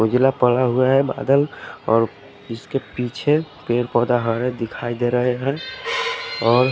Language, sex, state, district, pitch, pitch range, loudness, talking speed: Hindi, male, Odisha, Khordha, 125 Hz, 120-135 Hz, -20 LUFS, 150 wpm